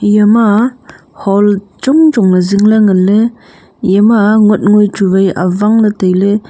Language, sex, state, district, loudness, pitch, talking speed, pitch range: Wancho, female, Arunachal Pradesh, Longding, -10 LUFS, 210 Hz, 165 wpm, 195-220 Hz